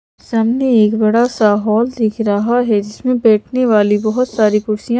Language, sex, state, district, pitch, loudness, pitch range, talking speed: Hindi, female, Chandigarh, Chandigarh, 220 Hz, -14 LUFS, 210-240 Hz, 180 wpm